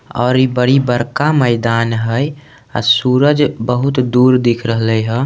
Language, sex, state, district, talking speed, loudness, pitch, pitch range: Maithili, male, Bihar, Samastipur, 150 wpm, -14 LUFS, 125 Hz, 115-135 Hz